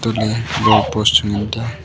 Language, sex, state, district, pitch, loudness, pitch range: Wancho, male, Arunachal Pradesh, Longding, 110 Hz, -16 LUFS, 110-115 Hz